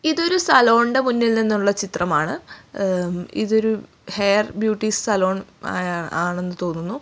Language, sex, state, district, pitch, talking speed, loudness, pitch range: Malayalam, female, Kerala, Kozhikode, 210 Hz, 110 wpm, -20 LUFS, 185-230 Hz